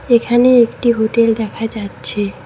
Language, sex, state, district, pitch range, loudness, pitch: Bengali, female, West Bengal, Cooch Behar, 220-235 Hz, -15 LUFS, 230 Hz